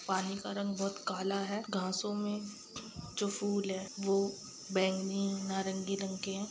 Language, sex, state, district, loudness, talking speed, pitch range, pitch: Hindi, female, Bihar, Gopalganj, -36 LUFS, 150 wpm, 190-200 Hz, 195 Hz